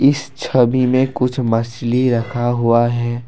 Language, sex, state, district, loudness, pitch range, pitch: Hindi, male, Assam, Kamrup Metropolitan, -17 LUFS, 120-130 Hz, 120 Hz